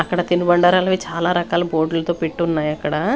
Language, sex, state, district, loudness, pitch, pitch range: Telugu, female, Andhra Pradesh, Sri Satya Sai, -18 LUFS, 170 Hz, 165-175 Hz